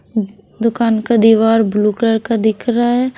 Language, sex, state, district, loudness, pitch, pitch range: Hindi, female, Bihar, West Champaran, -14 LUFS, 225 Hz, 220-235 Hz